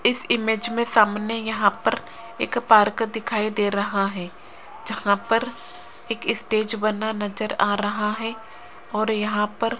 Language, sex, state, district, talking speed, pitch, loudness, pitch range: Hindi, female, Rajasthan, Jaipur, 155 wpm, 220 Hz, -23 LUFS, 210-225 Hz